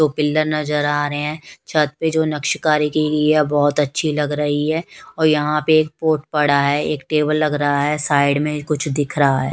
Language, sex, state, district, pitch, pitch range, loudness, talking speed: Hindi, female, Bihar, West Champaran, 150 Hz, 145-155 Hz, -18 LUFS, 225 wpm